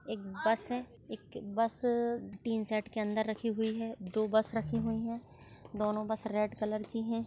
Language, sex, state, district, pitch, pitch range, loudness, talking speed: Marathi, female, Maharashtra, Sindhudurg, 220 Hz, 215-230 Hz, -35 LUFS, 175 wpm